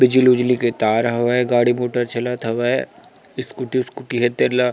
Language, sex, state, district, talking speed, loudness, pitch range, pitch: Chhattisgarhi, male, Chhattisgarh, Sarguja, 165 wpm, -19 LUFS, 120-125 Hz, 125 Hz